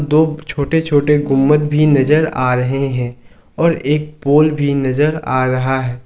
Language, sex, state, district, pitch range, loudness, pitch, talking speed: Hindi, male, Jharkhand, Ranchi, 130-150 Hz, -15 LUFS, 145 Hz, 170 wpm